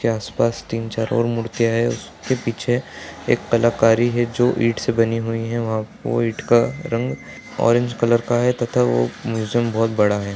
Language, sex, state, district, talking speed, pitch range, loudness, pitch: Hindi, male, Bihar, Purnia, 195 wpm, 115-120 Hz, -20 LUFS, 115 Hz